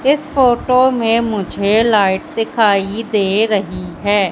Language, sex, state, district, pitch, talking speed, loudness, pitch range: Hindi, female, Madhya Pradesh, Katni, 220 Hz, 125 wpm, -15 LUFS, 200-235 Hz